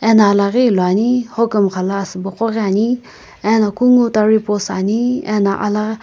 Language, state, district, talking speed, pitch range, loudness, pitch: Sumi, Nagaland, Kohima, 150 wpm, 200-230 Hz, -15 LUFS, 215 Hz